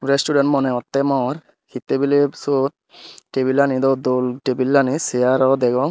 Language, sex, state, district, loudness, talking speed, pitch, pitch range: Chakma, male, Tripura, Dhalai, -18 LUFS, 130 wpm, 135 Hz, 130-140 Hz